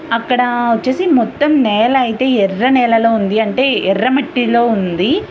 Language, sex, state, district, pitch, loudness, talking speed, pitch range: Telugu, female, Andhra Pradesh, Visakhapatnam, 235 Hz, -13 LUFS, 135 wpm, 220-260 Hz